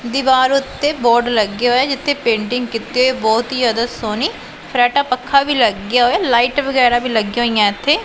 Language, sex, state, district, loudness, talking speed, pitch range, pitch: Punjabi, female, Punjab, Pathankot, -15 LUFS, 185 wpm, 230-265 Hz, 245 Hz